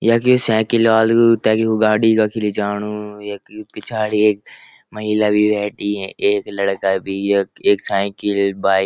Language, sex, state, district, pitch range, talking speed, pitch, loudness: Garhwali, male, Uttarakhand, Uttarkashi, 100-110 Hz, 165 wpm, 105 Hz, -17 LUFS